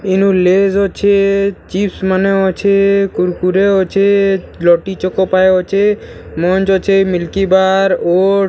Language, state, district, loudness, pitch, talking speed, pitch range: Sambalpuri, Odisha, Sambalpur, -13 LUFS, 195 Hz, 125 wpm, 185-195 Hz